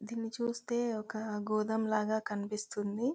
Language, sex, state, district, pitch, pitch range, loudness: Telugu, female, Telangana, Karimnagar, 220 Hz, 210-230 Hz, -35 LUFS